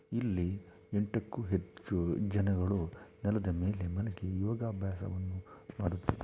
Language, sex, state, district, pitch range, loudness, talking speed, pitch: Kannada, male, Karnataka, Shimoga, 90-105 Hz, -36 LUFS, 95 wpm, 95 Hz